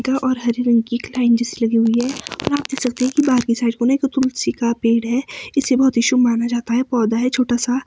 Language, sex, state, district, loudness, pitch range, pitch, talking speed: Hindi, female, Himachal Pradesh, Shimla, -18 LUFS, 235-260 Hz, 245 Hz, 260 wpm